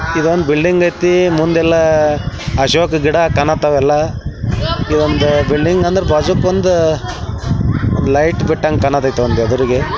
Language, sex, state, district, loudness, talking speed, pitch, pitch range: Kannada, male, Karnataka, Belgaum, -14 LUFS, 120 wpm, 150 Hz, 135-165 Hz